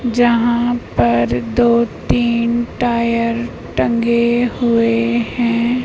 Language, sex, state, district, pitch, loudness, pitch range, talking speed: Hindi, female, Madhya Pradesh, Umaria, 235 Hz, -16 LUFS, 230-240 Hz, 80 wpm